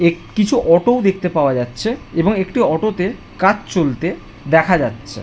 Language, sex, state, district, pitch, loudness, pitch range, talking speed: Bengali, male, West Bengal, Jhargram, 180 Hz, -17 LUFS, 160-205 Hz, 185 wpm